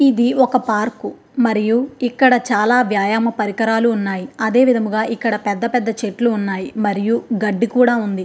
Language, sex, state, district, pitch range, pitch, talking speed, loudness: Telugu, female, Andhra Pradesh, Krishna, 210-245 Hz, 230 Hz, 140 wpm, -17 LUFS